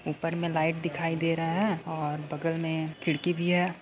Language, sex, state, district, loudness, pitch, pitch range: Hindi, female, Chhattisgarh, Korba, -29 LUFS, 165 Hz, 160-170 Hz